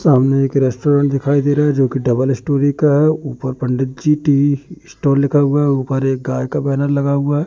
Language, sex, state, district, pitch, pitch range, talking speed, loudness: Hindi, male, Madhya Pradesh, Katni, 140 Hz, 135-145 Hz, 235 wpm, -16 LUFS